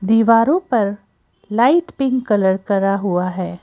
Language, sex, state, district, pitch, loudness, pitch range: Hindi, female, Madhya Pradesh, Bhopal, 210 Hz, -17 LUFS, 190-245 Hz